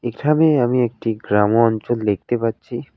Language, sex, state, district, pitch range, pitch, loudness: Bengali, male, West Bengal, Alipurduar, 110-125 Hz, 115 Hz, -18 LUFS